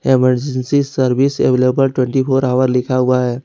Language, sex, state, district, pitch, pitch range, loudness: Hindi, male, Jharkhand, Ranchi, 130 Hz, 125-135 Hz, -15 LUFS